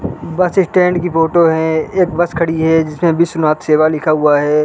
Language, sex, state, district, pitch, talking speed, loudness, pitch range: Hindi, male, Uttarakhand, Uttarkashi, 160 Hz, 180 wpm, -13 LUFS, 155-175 Hz